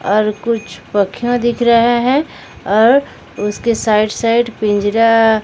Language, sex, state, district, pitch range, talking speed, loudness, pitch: Hindi, female, Odisha, Sambalpur, 210-240 Hz, 120 wpm, -14 LUFS, 225 Hz